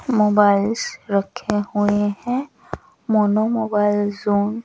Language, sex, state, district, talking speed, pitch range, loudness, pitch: Hindi, male, Odisha, Nuapada, 105 wpm, 205-220 Hz, -19 LUFS, 210 Hz